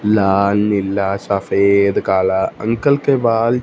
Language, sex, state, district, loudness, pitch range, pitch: Hindi, male, Punjab, Fazilka, -16 LUFS, 100-115 Hz, 100 Hz